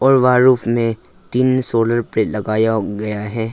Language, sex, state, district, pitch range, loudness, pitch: Hindi, male, Arunachal Pradesh, Lower Dibang Valley, 110-125 Hz, -17 LUFS, 115 Hz